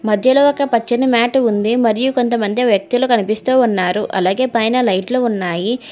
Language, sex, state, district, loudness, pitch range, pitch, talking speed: Telugu, female, Telangana, Hyderabad, -15 LUFS, 210-255 Hz, 235 Hz, 140 wpm